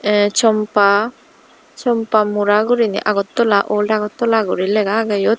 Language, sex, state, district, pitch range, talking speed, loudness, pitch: Chakma, female, Tripura, Dhalai, 205-225 Hz, 135 wpm, -16 LUFS, 215 Hz